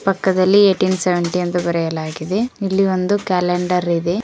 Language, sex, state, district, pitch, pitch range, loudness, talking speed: Kannada, female, Karnataka, Koppal, 180 Hz, 175-195 Hz, -17 LUFS, 125 wpm